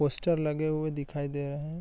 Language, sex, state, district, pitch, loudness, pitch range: Hindi, male, Chhattisgarh, Raigarh, 150 Hz, -31 LUFS, 145-155 Hz